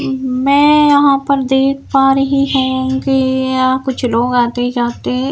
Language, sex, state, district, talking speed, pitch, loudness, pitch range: Hindi, female, Bihar, Patna, 205 wpm, 265 Hz, -13 LUFS, 255-275 Hz